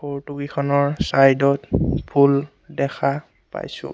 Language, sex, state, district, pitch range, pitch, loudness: Assamese, male, Assam, Sonitpur, 140-145 Hz, 140 Hz, -20 LUFS